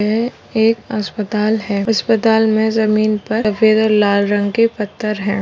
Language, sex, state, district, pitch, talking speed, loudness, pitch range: Hindi, female, Rajasthan, Churu, 215 Hz, 165 wpm, -16 LUFS, 210-220 Hz